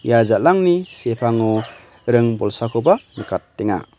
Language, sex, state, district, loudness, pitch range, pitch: Garo, male, Meghalaya, West Garo Hills, -18 LUFS, 110-120 Hz, 115 Hz